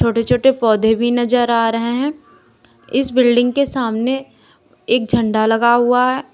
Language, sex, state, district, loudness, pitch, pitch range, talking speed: Hindi, female, Uttar Pradesh, Lalitpur, -16 LUFS, 245 Hz, 230-255 Hz, 160 wpm